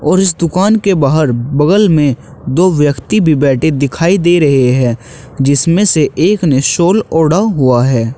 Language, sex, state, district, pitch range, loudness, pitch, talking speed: Hindi, male, Uttar Pradesh, Shamli, 135-180 Hz, -11 LUFS, 155 Hz, 170 wpm